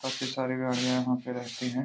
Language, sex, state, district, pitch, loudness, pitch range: Hindi, male, Jharkhand, Jamtara, 125 Hz, -30 LUFS, 125-130 Hz